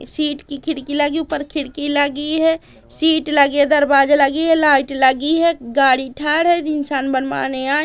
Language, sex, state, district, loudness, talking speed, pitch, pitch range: Hindi, female, Madhya Pradesh, Katni, -16 LUFS, 200 wpm, 290 Hz, 275-315 Hz